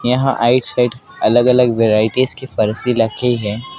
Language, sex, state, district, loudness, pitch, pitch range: Hindi, male, Madhya Pradesh, Dhar, -15 LUFS, 120 Hz, 115-125 Hz